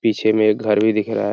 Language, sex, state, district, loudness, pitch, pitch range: Hindi, male, Uttar Pradesh, Hamirpur, -17 LUFS, 110 Hz, 105-110 Hz